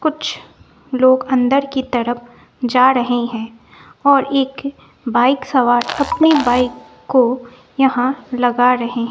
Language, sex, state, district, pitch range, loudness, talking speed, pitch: Hindi, female, Bihar, West Champaran, 245-270 Hz, -16 LUFS, 120 wpm, 255 Hz